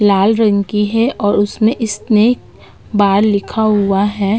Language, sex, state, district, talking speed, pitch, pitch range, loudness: Hindi, female, Uttar Pradesh, Budaun, 150 wpm, 210 Hz, 200-220 Hz, -14 LUFS